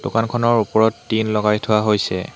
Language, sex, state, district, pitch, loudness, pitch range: Assamese, male, Assam, Hailakandi, 110 Hz, -18 LUFS, 105-115 Hz